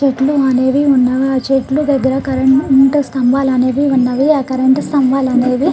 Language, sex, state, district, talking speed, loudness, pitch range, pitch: Telugu, female, Andhra Pradesh, Krishna, 145 wpm, -13 LUFS, 260-280 Hz, 265 Hz